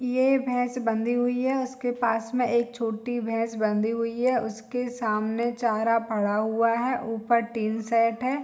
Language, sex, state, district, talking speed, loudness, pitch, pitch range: Hindi, female, Bihar, Saharsa, 170 wpm, -26 LUFS, 230 Hz, 225-245 Hz